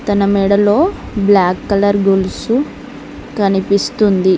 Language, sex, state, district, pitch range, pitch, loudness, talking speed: Telugu, female, Telangana, Mahabubabad, 195-205 Hz, 200 Hz, -14 LUFS, 80 wpm